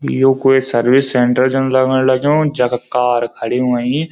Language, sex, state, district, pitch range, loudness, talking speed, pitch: Garhwali, male, Uttarakhand, Uttarkashi, 125-135 Hz, -14 LUFS, 160 wpm, 130 Hz